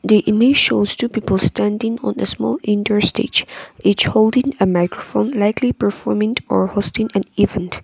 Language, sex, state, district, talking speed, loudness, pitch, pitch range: English, female, Nagaland, Kohima, 160 wpm, -17 LUFS, 210 Hz, 195-225 Hz